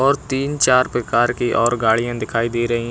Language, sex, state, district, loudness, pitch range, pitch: Hindi, male, Uttar Pradesh, Lucknow, -18 LUFS, 115-130 Hz, 120 Hz